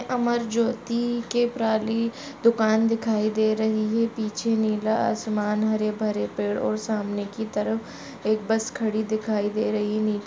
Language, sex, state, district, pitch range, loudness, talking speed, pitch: Hindi, female, Maharashtra, Solapur, 215-230 Hz, -25 LUFS, 160 wpm, 220 Hz